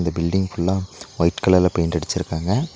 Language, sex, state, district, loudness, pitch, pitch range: Tamil, male, Tamil Nadu, Nilgiris, -21 LUFS, 90 Hz, 85-95 Hz